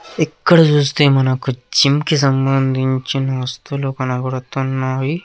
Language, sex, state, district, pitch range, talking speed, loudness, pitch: Telugu, male, Andhra Pradesh, Krishna, 130-145 Hz, 90 wpm, -16 LUFS, 135 Hz